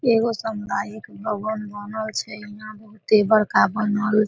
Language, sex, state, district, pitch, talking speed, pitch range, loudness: Maithili, female, Bihar, Samastipur, 215 Hz, 140 wpm, 210-220 Hz, -22 LUFS